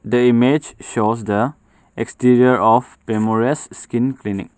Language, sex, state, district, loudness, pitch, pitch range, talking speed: English, male, Arunachal Pradesh, Papum Pare, -17 LUFS, 120 Hz, 110-125 Hz, 120 wpm